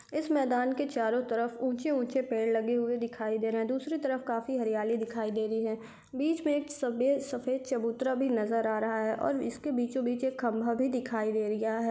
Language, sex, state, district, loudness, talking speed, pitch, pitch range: Hindi, female, Uttar Pradesh, Deoria, -31 LUFS, 220 wpm, 240 Hz, 225-260 Hz